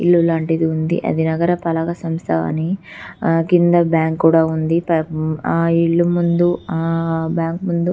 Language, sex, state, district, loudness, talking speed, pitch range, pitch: Telugu, female, Telangana, Karimnagar, -17 LUFS, 135 wpm, 160-170 Hz, 165 Hz